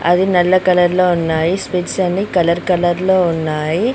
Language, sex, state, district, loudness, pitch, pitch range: Telugu, female, Telangana, Mahabubabad, -15 LUFS, 180 Hz, 170-185 Hz